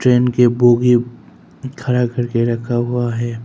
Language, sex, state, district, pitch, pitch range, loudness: Hindi, male, Arunachal Pradesh, Papum Pare, 120 Hz, 120-125 Hz, -16 LUFS